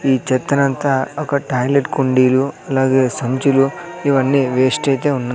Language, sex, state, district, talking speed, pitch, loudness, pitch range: Telugu, male, Andhra Pradesh, Sri Satya Sai, 125 wpm, 135 Hz, -16 LUFS, 130-140 Hz